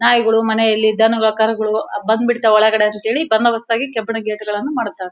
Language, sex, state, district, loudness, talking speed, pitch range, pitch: Kannada, female, Karnataka, Bellary, -16 LUFS, 165 wpm, 215-230 Hz, 220 Hz